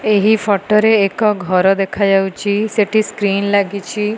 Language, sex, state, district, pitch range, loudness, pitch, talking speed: Odia, female, Odisha, Malkangiri, 195-215 Hz, -15 LUFS, 205 Hz, 130 wpm